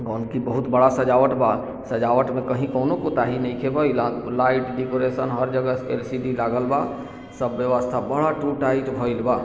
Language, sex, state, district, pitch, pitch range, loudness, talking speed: Bhojpuri, male, Bihar, East Champaran, 130 Hz, 125-130 Hz, -22 LUFS, 170 wpm